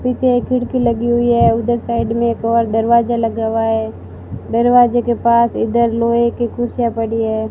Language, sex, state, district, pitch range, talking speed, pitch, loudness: Hindi, female, Rajasthan, Barmer, 230-240 Hz, 190 wpm, 235 Hz, -15 LUFS